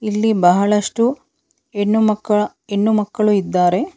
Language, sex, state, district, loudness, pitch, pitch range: Kannada, female, Karnataka, Bangalore, -17 LUFS, 210 Hz, 200-220 Hz